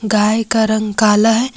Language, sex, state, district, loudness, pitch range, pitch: Hindi, female, Jharkhand, Ranchi, -14 LUFS, 215-225 Hz, 220 Hz